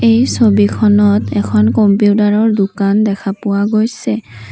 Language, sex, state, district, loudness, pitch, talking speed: Assamese, female, Assam, Kamrup Metropolitan, -12 LUFS, 200 Hz, 105 wpm